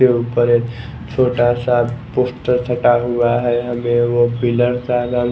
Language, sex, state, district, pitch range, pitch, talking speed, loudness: Hindi, male, Bihar, West Champaran, 120-125 Hz, 120 Hz, 145 wpm, -16 LUFS